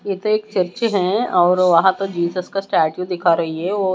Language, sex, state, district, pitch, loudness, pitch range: Hindi, female, Odisha, Malkangiri, 185 Hz, -18 LUFS, 175-195 Hz